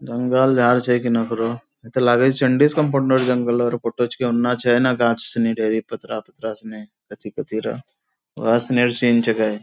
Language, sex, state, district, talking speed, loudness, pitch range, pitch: Angika, male, Bihar, Bhagalpur, 175 wpm, -19 LUFS, 115-125 Hz, 120 Hz